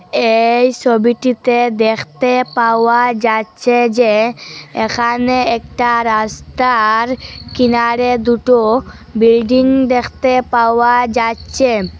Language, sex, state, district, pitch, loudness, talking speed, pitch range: Bengali, female, Assam, Hailakandi, 240 Hz, -13 LUFS, 80 wpm, 230-245 Hz